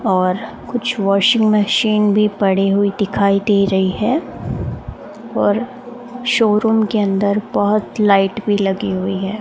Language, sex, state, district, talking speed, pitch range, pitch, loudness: Hindi, female, Rajasthan, Bikaner, 135 wpm, 195-220 Hz, 205 Hz, -16 LUFS